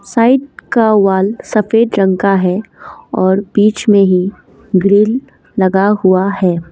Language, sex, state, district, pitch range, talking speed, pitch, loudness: Hindi, female, Assam, Kamrup Metropolitan, 190-220 Hz, 135 wpm, 200 Hz, -12 LUFS